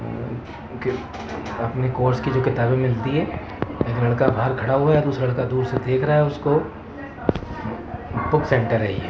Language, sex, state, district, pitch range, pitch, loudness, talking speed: Hindi, male, Rajasthan, Jaipur, 115-135 Hz, 125 Hz, -22 LUFS, 185 wpm